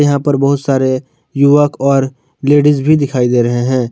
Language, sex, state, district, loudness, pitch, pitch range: Hindi, male, Jharkhand, Garhwa, -12 LUFS, 140 Hz, 130-145 Hz